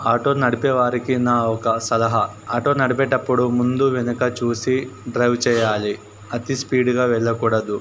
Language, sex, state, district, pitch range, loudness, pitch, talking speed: Telugu, male, Telangana, Karimnagar, 115-130 Hz, -19 LUFS, 120 Hz, 130 wpm